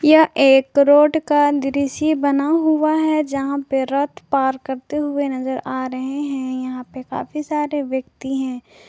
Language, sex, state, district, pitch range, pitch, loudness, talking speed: Hindi, female, Jharkhand, Garhwa, 265-300 Hz, 280 Hz, -19 LUFS, 160 wpm